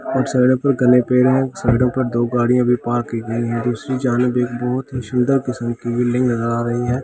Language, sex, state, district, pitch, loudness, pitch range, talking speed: Hindi, male, Delhi, New Delhi, 125 Hz, -18 LUFS, 120-125 Hz, 245 wpm